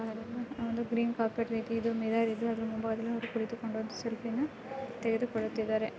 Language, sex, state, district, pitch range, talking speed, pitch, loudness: Kannada, female, Karnataka, Gulbarga, 225-235 Hz, 120 wpm, 230 Hz, -34 LUFS